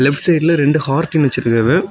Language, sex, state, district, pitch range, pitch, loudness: Tamil, male, Tamil Nadu, Kanyakumari, 135-165 Hz, 145 Hz, -14 LUFS